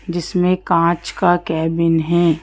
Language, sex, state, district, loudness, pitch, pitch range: Hindi, female, Madhya Pradesh, Bhopal, -17 LUFS, 170 Hz, 165-175 Hz